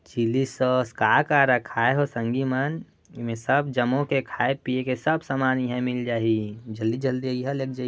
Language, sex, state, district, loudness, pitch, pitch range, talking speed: Chhattisgarhi, male, Chhattisgarh, Raigarh, -24 LUFS, 130 Hz, 120-135 Hz, 185 wpm